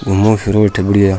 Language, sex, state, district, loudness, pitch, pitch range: Rajasthani, male, Rajasthan, Churu, -13 LUFS, 100 Hz, 95-105 Hz